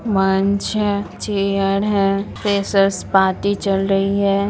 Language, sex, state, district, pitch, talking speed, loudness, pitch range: Hindi, female, Bihar, Supaul, 195 Hz, 145 wpm, -18 LUFS, 195-200 Hz